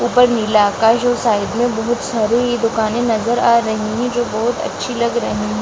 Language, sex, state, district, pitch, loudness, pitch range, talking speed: Hindi, female, Bihar, Bhagalpur, 235 Hz, -16 LUFS, 215-240 Hz, 200 wpm